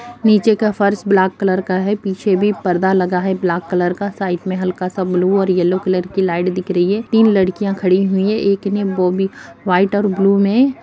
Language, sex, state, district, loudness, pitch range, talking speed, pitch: Hindi, female, Bihar, Jahanabad, -16 LUFS, 185-200 Hz, 225 wpm, 190 Hz